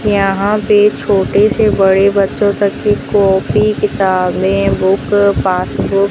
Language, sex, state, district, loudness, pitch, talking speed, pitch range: Hindi, female, Rajasthan, Bikaner, -12 LUFS, 200 Hz, 125 wpm, 190-205 Hz